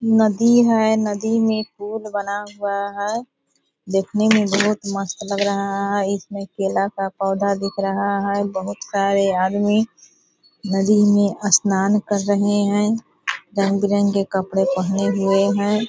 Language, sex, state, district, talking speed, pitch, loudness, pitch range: Hindi, female, Bihar, Purnia, 150 wpm, 200 Hz, -19 LUFS, 195-210 Hz